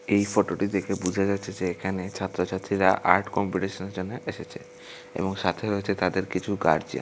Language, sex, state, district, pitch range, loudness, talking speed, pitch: Bengali, male, Tripura, West Tripura, 95-100 Hz, -26 LUFS, 160 wpm, 95 Hz